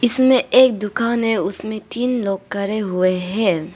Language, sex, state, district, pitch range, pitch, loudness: Hindi, female, Arunachal Pradesh, Papum Pare, 195-240 Hz, 215 Hz, -18 LUFS